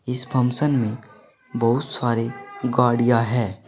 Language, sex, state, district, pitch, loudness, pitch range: Hindi, male, Uttar Pradesh, Saharanpur, 125 Hz, -22 LUFS, 115-125 Hz